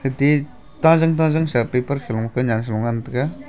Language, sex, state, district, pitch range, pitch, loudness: Wancho, male, Arunachal Pradesh, Longding, 120-155 Hz, 130 Hz, -19 LUFS